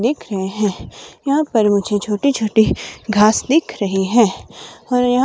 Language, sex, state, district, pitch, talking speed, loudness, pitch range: Hindi, female, Himachal Pradesh, Shimla, 220 Hz, 160 wpm, -17 LUFS, 205-250 Hz